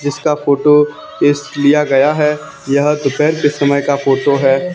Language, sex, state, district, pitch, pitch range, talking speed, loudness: Hindi, male, Haryana, Charkhi Dadri, 145 Hz, 140-150 Hz, 165 wpm, -13 LUFS